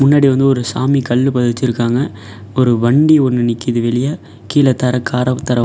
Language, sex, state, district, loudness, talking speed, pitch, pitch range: Tamil, male, Tamil Nadu, Namakkal, -14 LUFS, 150 wpm, 125 Hz, 120-135 Hz